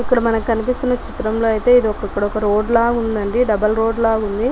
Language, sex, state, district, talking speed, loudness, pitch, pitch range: Telugu, female, Telangana, Nalgonda, 200 wpm, -17 LUFS, 225 Hz, 215-240 Hz